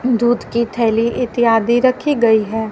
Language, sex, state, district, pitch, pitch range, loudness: Hindi, female, Haryana, Rohtak, 235 Hz, 225-245 Hz, -15 LUFS